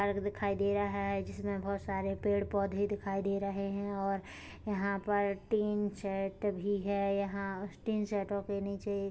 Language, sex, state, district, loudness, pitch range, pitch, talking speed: Hindi, female, Chhattisgarh, Kabirdham, -35 LUFS, 195-205 Hz, 200 Hz, 180 wpm